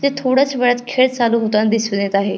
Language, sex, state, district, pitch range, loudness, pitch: Marathi, female, Maharashtra, Pune, 215-255 Hz, -16 LUFS, 240 Hz